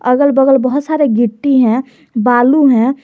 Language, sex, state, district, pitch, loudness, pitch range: Hindi, male, Jharkhand, Garhwa, 260 Hz, -12 LUFS, 245-280 Hz